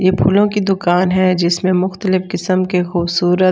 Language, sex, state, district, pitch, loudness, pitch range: Hindi, female, Delhi, New Delhi, 185 Hz, -15 LUFS, 180-185 Hz